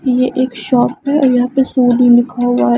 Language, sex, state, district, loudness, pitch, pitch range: Hindi, female, Himachal Pradesh, Shimla, -13 LUFS, 250 Hz, 245-260 Hz